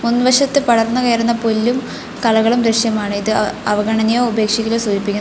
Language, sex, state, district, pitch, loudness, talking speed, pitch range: Malayalam, female, Kerala, Kollam, 230 Hz, -15 LUFS, 115 wpm, 220-240 Hz